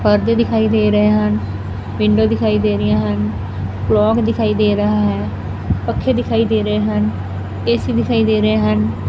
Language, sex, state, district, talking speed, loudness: Punjabi, female, Punjab, Fazilka, 165 wpm, -16 LUFS